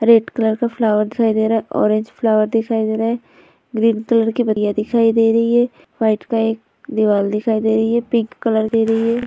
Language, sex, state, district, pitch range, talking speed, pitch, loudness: Hindi, female, Uttar Pradesh, Varanasi, 220-230 Hz, 235 wpm, 225 Hz, -17 LUFS